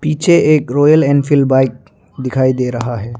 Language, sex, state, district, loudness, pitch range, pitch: Hindi, male, Arunachal Pradesh, Lower Dibang Valley, -13 LUFS, 125-150 Hz, 135 Hz